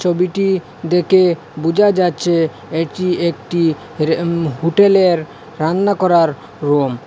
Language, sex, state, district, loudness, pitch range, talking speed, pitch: Bengali, male, Assam, Hailakandi, -16 LUFS, 160-180 Hz, 120 wpm, 170 Hz